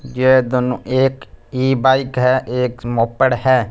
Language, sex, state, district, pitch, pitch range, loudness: Hindi, male, Punjab, Fazilka, 130 Hz, 125-130 Hz, -16 LUFS